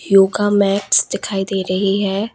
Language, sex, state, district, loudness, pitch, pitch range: Hindi, female, Assam, Kamrup Metropolitan, -16 LUFS, 195 Hz, 195-205 Hz